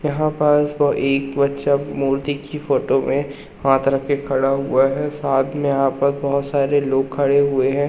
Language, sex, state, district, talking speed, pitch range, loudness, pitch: Hindi, male, Madhya Pradesh, Umaria, 190 wpm, 135-145 Hz, -19 LUFS, 140 Hz